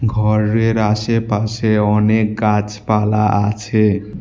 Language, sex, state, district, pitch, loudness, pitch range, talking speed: Bengali, male, West Bengal, Alipurduar, 105 Hz, -16 LUFS, 105-110 Hz, 70 wpm